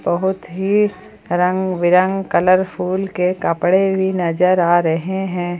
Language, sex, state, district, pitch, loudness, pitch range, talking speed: Hindi, female, Jharkhand, Palamu, 185 Hz, -17 LUFS, 175-190 Hz, 130 wpm